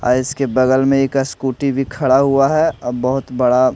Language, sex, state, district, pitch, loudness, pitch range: Hindi, male, Delhi, New Delhi, 130 Hz, -16 LUFS, 130-135 Hz